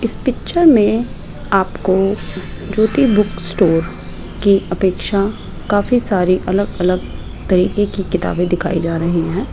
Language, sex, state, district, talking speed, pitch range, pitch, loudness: Hindi, female, Rajasthan, Jaipur, 125 wpm, 180-210 Hz, 195 Hz, -16 LUFS